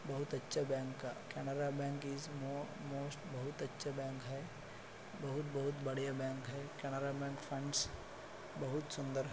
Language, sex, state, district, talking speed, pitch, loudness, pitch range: Hindi, male, Maharashtra, Solapur, 150 wpm, 140 Hz, -43 LUFS, 135-145 Hz